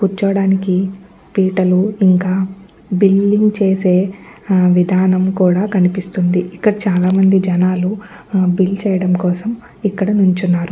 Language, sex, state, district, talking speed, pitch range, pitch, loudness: Telugu, female, Andhra Pradesh, Guntur, 100 wpm, 185-195 Hz, 190 Hz, -15 LUFS